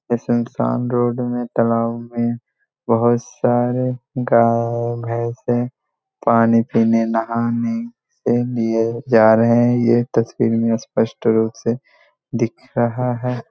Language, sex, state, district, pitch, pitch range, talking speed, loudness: Hindi, male, Bihar, Jamui, 115 Hz, 115-120 Hz, 110 wpm, -18 LUFS